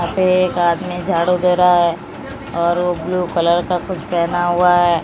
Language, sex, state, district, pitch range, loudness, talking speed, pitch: Hindi, female, Odisha, Malkangiri, 170-180 Hz, -16 LUFS, 200 wpm, 175 Hz